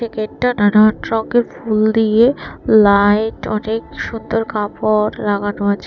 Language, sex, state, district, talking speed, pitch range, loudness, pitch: Bengali, female, Tripura, West Tripura, 125 wpm, 210-225 Hz, -16 LUFS, 215 Hz